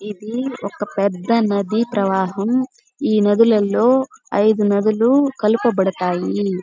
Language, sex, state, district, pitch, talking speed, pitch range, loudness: Telugu, female, Andhra Pradesh, Chittoor, 210 Hz, 90 wpm, 200-235 Hz, -18 LUFS